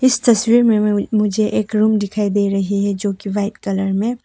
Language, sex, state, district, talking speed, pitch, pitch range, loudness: Hindi, female, Arunachal Pradesh, Papum Pare, 210 wpm, 210 Hz, 200-220 Hz, -17 LUFS